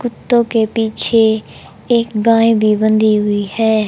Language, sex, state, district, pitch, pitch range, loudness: Hindi, male, Haryana, Jhajjar, 220 Hz, 215-230 Hz, -14 LUFS